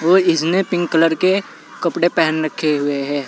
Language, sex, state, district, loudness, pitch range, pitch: Hindi, male, Uttar Pradesh, Saharanpur, -17 LUFS, 155-175 Hz, 165 Hz